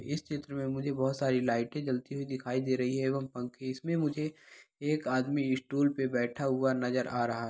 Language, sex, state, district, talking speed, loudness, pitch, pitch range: Hindi, male, Bihar, Saharsa, 210 wpm, -32 LUFS, 130 Hz, 125-140 Hz